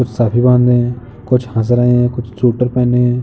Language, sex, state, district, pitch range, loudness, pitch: Hindi, male, Uttar Pradesh, Jalaun, 120-125 Hz, -14 LUFS, 120 Hz